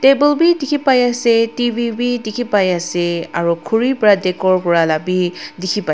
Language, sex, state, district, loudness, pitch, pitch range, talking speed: Nagamese, female, Nagaland, Dimapur, -16 LUFS, 215 Hz, 180-245 Hz, 140 wpm